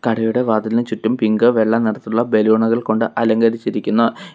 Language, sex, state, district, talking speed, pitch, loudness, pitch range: Malayalam, male, Kerala, Kollam, 125 wpm, 115 Hz, -17 LUFS, 110-115 Hz